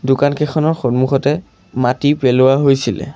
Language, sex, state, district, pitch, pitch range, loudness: Assamese, male, Assam, Sonitpur, 135 Hz, 125-145 Hz, -15 LUFS